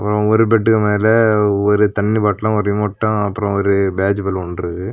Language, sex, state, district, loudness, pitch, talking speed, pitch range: Tamil, male, Tamil Nadu, Kanyakumari, -16 LUFS, 105 Hz, 160 wpm, 100-110 Hz